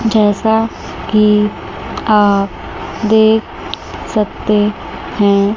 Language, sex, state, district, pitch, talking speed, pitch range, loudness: Hindi, female, Chandigarh, Chandigarh, 210 Hz, 65 wpm, 205-220 Hz, -14 LUFS